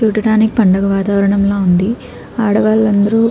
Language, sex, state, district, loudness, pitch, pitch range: Telugu, female, Andhra Pradesh, Krishna, -13 LUFS, 210 Hz, 200-220 Hz